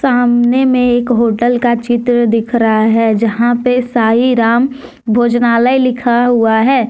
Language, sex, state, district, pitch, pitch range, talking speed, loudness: Hindi, female, Jharkhand, Deoghar, 240 Hz, 230-250 Hz, 150 wpm, -12 LUFS